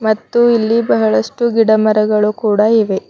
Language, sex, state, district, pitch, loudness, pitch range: Kannada, female, Karnataka, Bidar, 215 Hz, -13 LUFS, 210-225 Hz